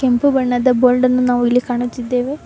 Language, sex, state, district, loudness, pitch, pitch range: Kannada, female, Karnataka, Bangalore, -15 LUFS, 250 Hz, 245-255 Hz